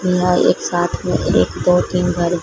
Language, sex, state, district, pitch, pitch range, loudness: Hindi, female, Punjab, Fazilka, 180 Hz, 175-180 Hz, -16 LUFS